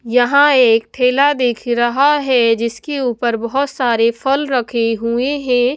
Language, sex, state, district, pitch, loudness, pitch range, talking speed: Hindi, female, Punjab, Pathankot, 245 Hz, -15 LUFS, 235-275 Hz, 145 wpm